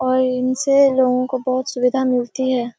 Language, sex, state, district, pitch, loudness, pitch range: Hindi, female, Bihar, Kishanganj, 255 Hz, -18 LUFS, 250-260 Hz